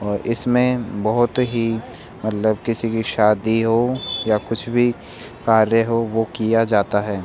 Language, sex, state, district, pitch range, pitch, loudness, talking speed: Hindi, male, Rajasthan, Jaipur, 110-120 Hz, 115 Hz, -19 LUFS, 150 wpm